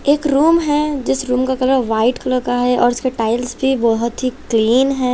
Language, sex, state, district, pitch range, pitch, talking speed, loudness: Hindi, female, Chhattisgarh, Raipur, 245-270 Hz, 255 Hz, 220 wpm, -16 LUFS